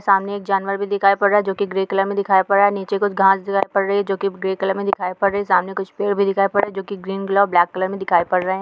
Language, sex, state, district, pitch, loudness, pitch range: Hindi, female, Bihar, Jamui, 195 Hz, -19 LUFS, 195-200 Hz